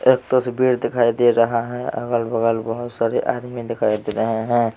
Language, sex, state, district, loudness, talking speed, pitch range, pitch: Hindi, male, Bihar, Patna, -20 LUFS, 190 wpm, 115-125 Hz, 120 Hz